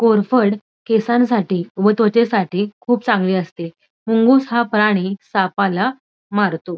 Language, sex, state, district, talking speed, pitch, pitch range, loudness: Marathi, female, Maharashtra, Dhule, 105 wpm, 210 Hz, 190-235 Hz, -17 LUFS